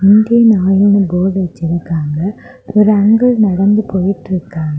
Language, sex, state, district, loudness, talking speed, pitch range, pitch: Tamil, female, Tamil Nadu, Kanyakumari, -12 LUFS, 100 wpm, 175-210 Hz, 195 Hz